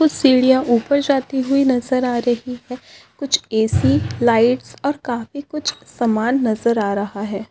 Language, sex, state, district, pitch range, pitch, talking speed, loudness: Hindi, female, Maharashtra, Aurangabad, 225-275 Hz, 250 Hz, 160 wpm, -18 LUFS